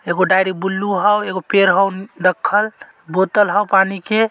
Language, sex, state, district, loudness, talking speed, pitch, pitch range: Magahi, male, Bihar, Samastipur, -16 LUFS, 165 wpm, 195 Hz, 190-205 Hz